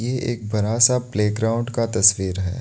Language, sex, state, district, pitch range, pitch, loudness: Hindi, male, Assam, Kamrup Metropolitan, 105-120 Hz, 115 Hz, -19 LUFS